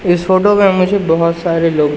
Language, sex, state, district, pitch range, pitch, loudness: Hindi, male, Madhya Pradesh, Umaria, 165-190 Hz, 175 Hz, -12 LUFS